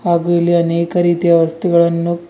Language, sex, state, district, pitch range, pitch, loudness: Kannada, male, Karnataka, Bidar, 170-175 Hz, 170 Hz, -14 LUFS